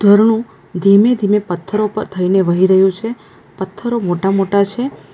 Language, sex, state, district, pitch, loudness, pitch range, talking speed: Gujarati, female, Gujarat, Valsad, 200 Hz, -15 LUFS, 190-215 Hz, 130 wpm